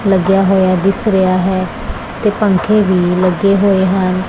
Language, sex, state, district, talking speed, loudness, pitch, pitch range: Punjabi, female, Punjab, Pathankot, 155 wpm, -13 LUFS, 190 Hz, 185-200 Hz